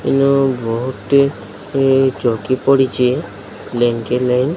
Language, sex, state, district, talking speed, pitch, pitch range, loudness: Odia, male, Odisha, Sambalpur, 105 wpm, 125 Hz, 120-135 Hz, -16 LUFS